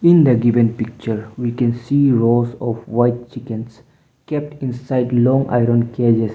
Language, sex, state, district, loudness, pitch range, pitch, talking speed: English, male, Mizoram, Aizawl, -17 LUFS, 115-130 Hz, 120 Hz, 150 wpm